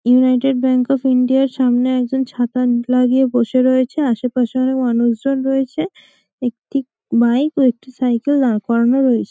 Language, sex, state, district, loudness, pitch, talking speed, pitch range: Bengali, female, West Bengal, Malda, -16 LUFS, 255 Hz, 150 wpm, 245-265 Hz